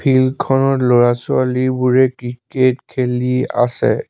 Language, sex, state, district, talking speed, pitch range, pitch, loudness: Assamese, male, Assam, Sonitpur, 85 wpm, 125-130 Hz, 130 Hz, -16 LUFS